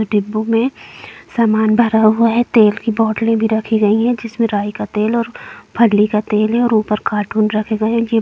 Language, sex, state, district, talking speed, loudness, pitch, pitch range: Hindi, female, Bihar, Gopalganj, 210 wpm, -15 LUFS, 220 Hz, 215-230 Hz